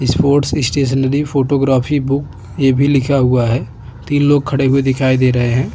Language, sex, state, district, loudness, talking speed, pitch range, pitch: Hindi, male, Chhattisgarh, Bastar, -14 LUFS, 155 wpm, 130-140 Hz, 135 Hz